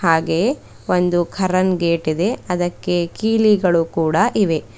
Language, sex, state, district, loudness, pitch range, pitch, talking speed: Kannada, female, Karnataka, Bidar, -18 LUFS, 165-195 Hz, 175 Hz, 115 wpm